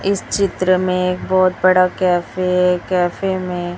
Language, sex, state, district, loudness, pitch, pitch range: Hindi, male, Chhattisgarh, Raipur, -17 LUFS, 185 Hz, 180-185 Hz